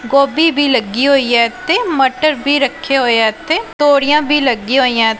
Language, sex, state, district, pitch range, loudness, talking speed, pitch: Punjabi, female, Punjab, Pathankot, 245-295 Hz, -13 LUFS, 175 wpm, 275 Hz